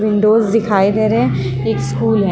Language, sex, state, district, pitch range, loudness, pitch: Hindi, female, Andhra Pradesh, Chittoor, 130-215 Hz, -15 LUFS, 195 Hz